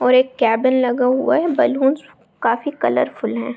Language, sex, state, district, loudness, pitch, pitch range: Hindi, female, Bihar, Saharsa, -18 LUFS, 260 Hz, 245-290 Hz